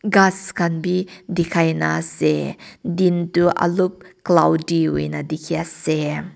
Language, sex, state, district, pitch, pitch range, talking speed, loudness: Nagamese, female, Nagaland, Kohima, 170 Hz, 155-180 Hz, 125 wpm, -20 LUFS